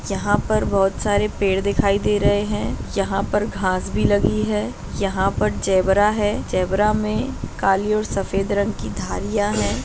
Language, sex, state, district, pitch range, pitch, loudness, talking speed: Hindi, female, Bihar, Jahanabad, 190-210 Hz, 200 Hz, -21 LUFS, 170 wpm